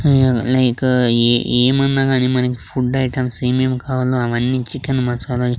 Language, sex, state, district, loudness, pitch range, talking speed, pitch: Telugu, male, Andhra Pradesh, Sri Satya Sai, -16 LUFS, 125-130 Hz, 130 wpm, 125 Hz